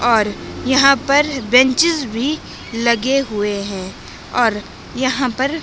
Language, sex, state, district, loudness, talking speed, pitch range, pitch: Hindi, female, Himachal Pradesh, Shimla, -16 LUFS, 115 wpm, 225-275 Hz, 255 Hz